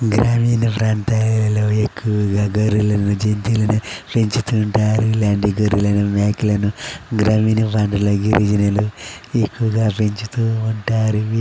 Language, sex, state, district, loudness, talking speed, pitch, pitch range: Telugu, male, Andhra Pradesh, Chittoor, -18 LUFS, 85 wpm, 110 Hz, 105-110 Hz